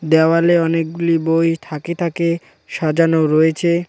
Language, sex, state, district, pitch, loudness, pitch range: Bengali, male, West Bengal, Cooch Behar, 165 Hz, -17 LUFS, 160-170 Hz